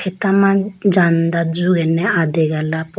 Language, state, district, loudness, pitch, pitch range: Idu Mishmi, Arunachal Pradesh, Lower Dibang Valley, -16 LUFS, 175 Hz, 165-195 Hz